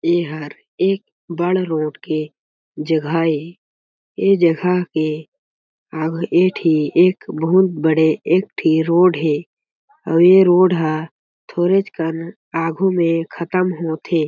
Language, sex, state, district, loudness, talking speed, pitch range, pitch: Chhattisgarhi, male, Chhattisgarh, Jashpur, -17 LUFS, 120 wpm, 160-185 Hz, 170 Hz